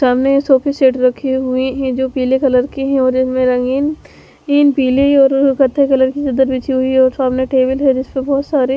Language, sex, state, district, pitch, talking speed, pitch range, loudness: Hindi, female, Haryana, Charkhi Dadri, 265 Hz, 225 wpm, 260-275 Hz, -14 LUFS